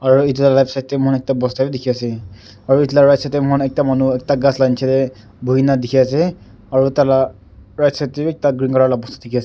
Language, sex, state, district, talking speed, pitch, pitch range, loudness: Nagamese, male, Nagaland, Dimapur, 265 wpm, 135 Hz, 125-140 Hz, -16 LUFS